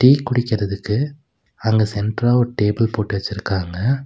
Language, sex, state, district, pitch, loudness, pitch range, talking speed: Tamil, male, Tamil Nadu, Nilgiris, 110 Hz, -20 LUFS, 105-125 Hz, 120 wpm